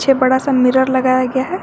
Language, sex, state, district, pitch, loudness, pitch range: Hindi, female, Jharkhand, Garhwa, 260 Hz, -14 LUFS, 255-265 Hz